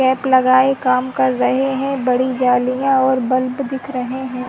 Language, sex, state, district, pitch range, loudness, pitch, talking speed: Hindi, female, Chhattisgarh, Korba, 255-265 Hz, -16 LUFS, 260 Hz, 175 wpm